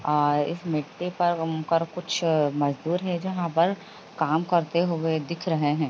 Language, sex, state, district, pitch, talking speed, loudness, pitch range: Hindi, female, Uttar Pradesh, Hamirpur, 165 Hz, 175 wpm, -25 LUFS, 155-175 Hz